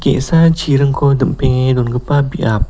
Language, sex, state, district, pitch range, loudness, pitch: Garo, male, Meghalaya, West Garo Hills, 130-145 Hz, -13 LUFS, 140 Hz